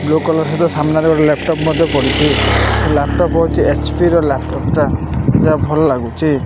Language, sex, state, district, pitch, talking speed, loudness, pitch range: Odia, male, Odisha, Malkangiri, 155 Hz, 160 wpm, -14 LUFS, 140-160 Hz